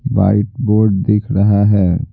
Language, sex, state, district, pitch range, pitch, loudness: Hindi, male, Bihar, Patna, 100-110 Hz, 105 Hz, -14 LUFS